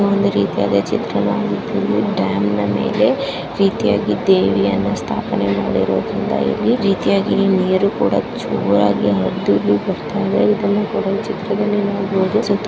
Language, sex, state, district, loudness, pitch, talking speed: Kannada, female, Karnataka, Chamarajanagar, -17 LUFS, 195 Hz, 100 wpm